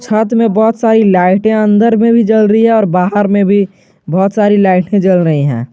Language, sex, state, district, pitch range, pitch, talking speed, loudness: Hindi, male, Jharkhand, Garhwa, 185-220 Hz, 205 Hz, 220 wpm, -10 LUFS